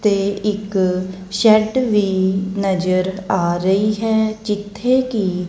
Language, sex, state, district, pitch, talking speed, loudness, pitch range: Punjabi, female, Punjab, Kapurthala, 200 Hz, 110 wpm, -18 LUFS, 190-215 Hz